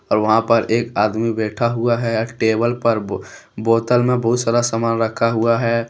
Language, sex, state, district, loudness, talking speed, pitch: Hindi, male, Jharkhand, Deoghar, -18 LUFS, 185 wpm, 115 Hz